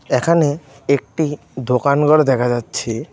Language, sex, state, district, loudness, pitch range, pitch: Bengali, male, Tripura, West Tripura, -17 LUFS, 125-150 Hz, 140 Hz